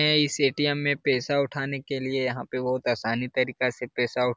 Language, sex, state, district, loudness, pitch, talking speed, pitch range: Hindi, male, Bihar, Jahanabad, -26 LUFS, 130 Hz, 190 wpm, 125-140 Hz